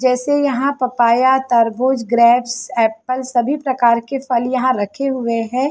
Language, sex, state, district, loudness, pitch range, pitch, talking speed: Hindi, female, Chhattisgarh, Sarguja, -16 LUFS, 235-265 Hz, 255 Hz, 155 wpm